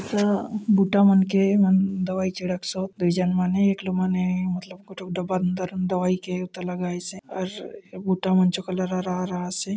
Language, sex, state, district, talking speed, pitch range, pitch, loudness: Halbi, male, Chhattisgarh, Bastar, 130 wpm, 180-195 Hz, 185 Hz, -24 LUFS